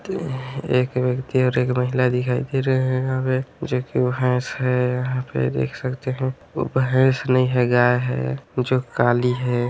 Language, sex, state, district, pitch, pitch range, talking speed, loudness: Hindi, male, Chhattisgarh, Raigarh, 125 Hz, 125-130 Hz, 165 wpm, -21 LUFS